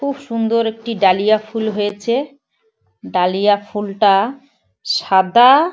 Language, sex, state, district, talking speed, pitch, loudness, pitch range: Bengali, female, West Bengal, Paschim Medinipur, 95 wpm, 225 Hz, -16 LUFS, 205-260 Hz